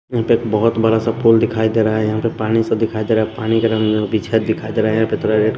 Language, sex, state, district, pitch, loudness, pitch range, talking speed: Hindi, male, Maharashtra, Washim, 110 Hz, -17 LUFS, 110-115 Hz, 335 wpm